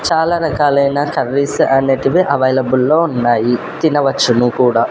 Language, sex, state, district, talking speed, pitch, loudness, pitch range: Telugu, male, Andhra Pradesh, Sri Satya Sai, 110 wpm, 135 Hz, -14 LUFS, 125-145 Hz